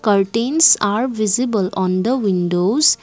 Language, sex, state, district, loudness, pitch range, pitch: English, female, Assam, Kamrup Metropolitan, -16 LUFS, 190-250 Hz, 210 Hz